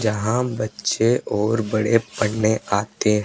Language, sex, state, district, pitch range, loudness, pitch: Hindi, male, Rajasthan, Jaipur, 105-115 Hz, -21 LUFS, 110 Hz